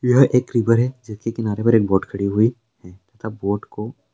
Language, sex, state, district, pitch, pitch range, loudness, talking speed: Hindi, male, Bihar, Sitamarhi, 110 Hz, 105-120 Hz, -19 LUFS, 205 wpm